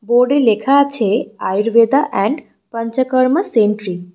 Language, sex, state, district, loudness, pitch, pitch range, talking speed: Bengali, female, West Bengal, Cooch Behar, -15 LUFS, 235 Hz, 215-265 Hz, 115 wpm